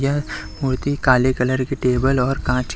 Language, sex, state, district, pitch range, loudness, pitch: Hindi, male, Chhattisgarh, Raipur, 125-135 Hz, -19 LUFS, 130 Hz